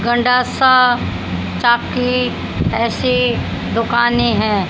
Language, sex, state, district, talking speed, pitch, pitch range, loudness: Hindi, female, Haryana, Charkhi Dadri, 65 wpm, 240 Hz, 215-250 Hz, -15 LUFS